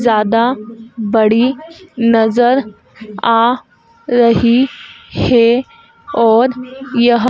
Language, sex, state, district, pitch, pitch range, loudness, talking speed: Hindi, female, Madhya Pradesh, Dhar, 240 Hz, 230-255 Hz, -13 LUFS, 65 wpm